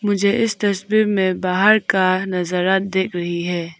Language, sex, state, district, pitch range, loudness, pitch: Hindi, female, Arunachal Pradesh, Papum Pare, 180-205 Hz, -18 LUFS, 190 Hz